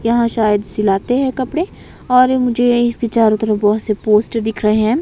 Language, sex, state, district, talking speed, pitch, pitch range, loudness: Hindi, female, Himachal Pradesh, Shimla, 190 wpm, 230 Hz, 215-250 Hz, -15 LUFS